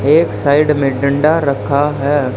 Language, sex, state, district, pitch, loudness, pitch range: Hindi, male, Haryana, Charkhi Dadri, 140 Hz, -14 LUFS, 135-145 Hz